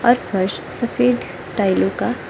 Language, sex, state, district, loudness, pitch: Hindi, female, Arunachal Pradesh, Lower Dibang Valley, -20 LUFS, 185 Hz